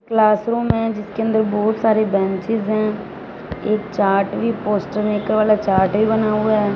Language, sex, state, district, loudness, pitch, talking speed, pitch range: Hindi, female, Punjab, Fazilka, -18 LUFS, 215 Hz, 170 wpm, 210-220 Hz